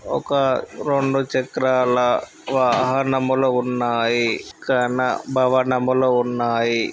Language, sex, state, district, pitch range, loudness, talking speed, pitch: Telugu, male, Andhra Pradesh, Guntur, 125-130 Hz, -20 LUFS, 70 wpm, 130 Hz